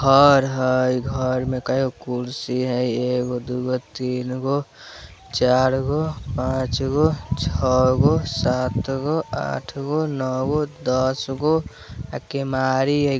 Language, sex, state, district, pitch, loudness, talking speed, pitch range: Bajjika, male, Bihar, Vaishali, 130 Hz, -22 LUFS, 100 wpm, 125-140 Hz